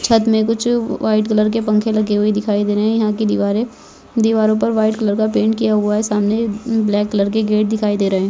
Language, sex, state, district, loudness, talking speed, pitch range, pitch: Hindi, male, Rajasthan, Churu, -16 LUFS, 245 wpm, 210-220 Hz, 215 Hz